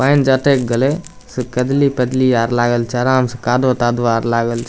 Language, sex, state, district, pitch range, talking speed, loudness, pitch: Maithili, male, Bihar, Samastipur, 120-130 Hz, 190 wpm, -16 LUFS, 125 Hz